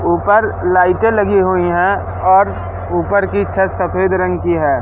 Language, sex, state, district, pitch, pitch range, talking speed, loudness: Hindi, male, Madhya Pradesh, Katni, 180 Hz, 135-190 Hz, 160 wpm, -14 LUFS